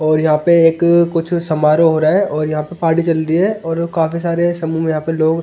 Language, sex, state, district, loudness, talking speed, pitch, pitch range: Hindi, male, Delhi, New Delhi, -15 LUFS, 265 wpm, 165 Hz, 155-170 Hz